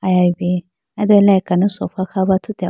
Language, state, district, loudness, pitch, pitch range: Idu Mishmi, Arunachal Pradesh, Lower Dibang Valley, -16 LUFS, 190 Hz, 180-200 Hz